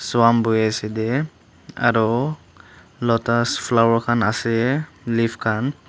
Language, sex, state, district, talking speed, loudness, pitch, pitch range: Nagamese, male, Nagaland, Dimapur, 110 wpm, -20 LUFS, 115 Hz, 110-120 Hz